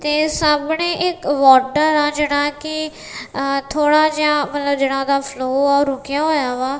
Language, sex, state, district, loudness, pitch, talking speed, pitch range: Punjabi, female, Punjab, Kapurthala, -17 LUFS, 290 Hz, 165 wpm, 275-305 Hz